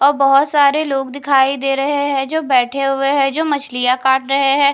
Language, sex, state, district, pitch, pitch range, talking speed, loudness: Hindi, female, Bihar, Katihar, 275 Hz, 270-285 Hz, 215 wpm, -15 LUFS